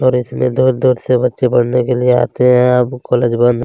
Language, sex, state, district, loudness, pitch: Hindi, male, Chhattisgarh, Kabirdham, -13 LUFS, 125 Hz